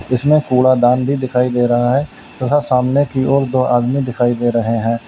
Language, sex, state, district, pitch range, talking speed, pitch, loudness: Hindi, male, Uttar Pradesh, Lalitpur, 120-135 Hz, 215 wpm, 125 Hz, -15 LUFS